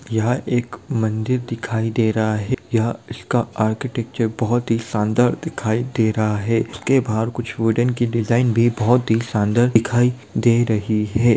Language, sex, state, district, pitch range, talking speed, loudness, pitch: Hindi, male, Bihar, Sitamarhi, 110-120 Hz, 165 wpm, -20 LUFS, 115 Hz